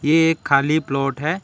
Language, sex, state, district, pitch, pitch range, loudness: Hindi, male, Karnataka, Bangalore, 155 Hz, 140-160 Hz, -19 LUFS